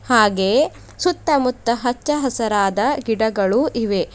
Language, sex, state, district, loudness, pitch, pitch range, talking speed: Kannada, female, Karnataka, Bidar, -19 LUFS, 230 Hz, 205-265 Hz, 100 wpm